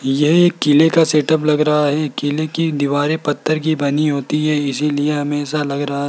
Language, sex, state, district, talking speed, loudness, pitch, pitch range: Hindi, male, Rajasthan, Jaipur, 215 wpm, -16 LUFS, 150 Hz, 145-155 Hz